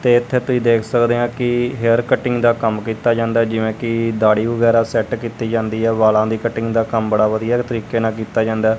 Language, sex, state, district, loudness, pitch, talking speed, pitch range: Punjabi, male, Punjab, Kapurthala, -17 LUFS, 115 Hz, 220 wpm, 110-120 Hz